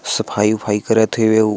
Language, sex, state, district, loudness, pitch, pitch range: Chhattisgarhi, male, Chhattisgarh, Sarguja, -16 LUFS, 110 Hz, 105-110 Hz